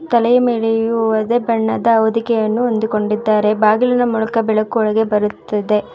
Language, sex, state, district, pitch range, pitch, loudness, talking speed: Kannada, female, Karnataka, Bangalore, 215-230 Hz, 225 Hz, -16 LUFS, 110 wpm